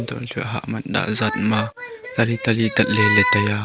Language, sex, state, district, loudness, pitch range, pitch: Wancho, male, Arunachal Pradesh, Longding, -19 LUFS, 100-115 Hz, 110 Hz